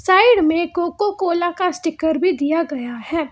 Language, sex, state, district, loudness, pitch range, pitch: Hindi, female, Karnataka, Bangalore, -18 LUFS, 315-365 Hz, 340 Hz